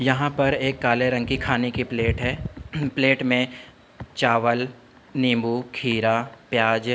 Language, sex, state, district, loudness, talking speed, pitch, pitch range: Hindi, male, Uttar Pradesh, Budaun, -23 LUFS, 145 wpm, 125 Hz, 120-130 Hz